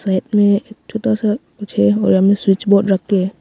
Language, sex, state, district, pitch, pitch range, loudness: Hindi, male, Arunachal Pradesh, Longding, 200 Hz, 190-210 Hz, -16 LUFS